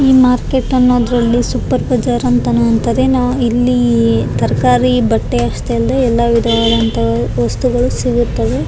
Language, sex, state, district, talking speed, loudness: Kannada, female, Karnataka, Raichur, 125 wpm, -13 LUFS